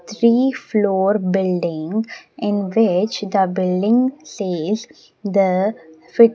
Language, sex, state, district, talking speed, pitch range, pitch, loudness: English, female, Maharashtra, Mumbai Suburban, 95 wpm, 185-225 Hz, 200 Hz, -19 LUFS